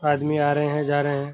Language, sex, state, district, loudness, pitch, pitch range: Hindi, male, Uttar Pradesh, Jyotiba Phule Nagar, -22 LUFS, 145 Hz, 145-150 Hz